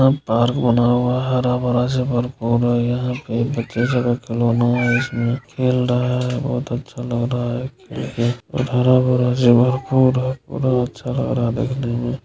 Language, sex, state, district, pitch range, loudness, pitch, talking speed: Maithili, male, Bihar, Supaul, 120-130 Hz, -19 LUFS, 125 Hz, 50 wpm